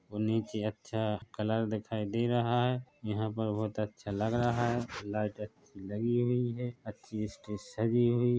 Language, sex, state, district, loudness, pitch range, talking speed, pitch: Hindi, male, Chhattisgarh, Bilaspur, -33 LUFS, 105-120 Hz, 170 wpm, 110 Hz